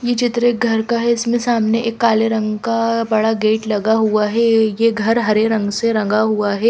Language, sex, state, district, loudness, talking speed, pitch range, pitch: Hindi, female, Haryana, Rohtak, -16 LUFS, 225 wpm, 215-230 Hz, 225 Hz